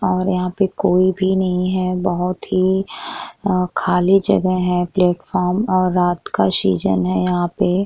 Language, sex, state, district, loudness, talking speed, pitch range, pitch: Hindi, female, Uttar Pradesh, Jyotiba Phule Nagar, -18 LUFS, 160 wpm, 180-185 Hz, 185 Hz